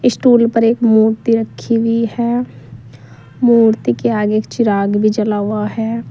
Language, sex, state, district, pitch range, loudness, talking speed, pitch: Hindi, female, Uttar Pradesh, Saharanpur, 205-230 Hz, -14 LUFS, 155 wpm, 220 Hz